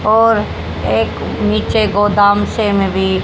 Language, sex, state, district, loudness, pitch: Hindi, female, Haryana, Rohtak, -14 LUFS, 205 Hz